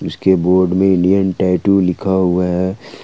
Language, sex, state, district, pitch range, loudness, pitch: Hindi, male, Jharkhand, Ranchi, 90-95 Hz, -15 LUFS, 95 Hz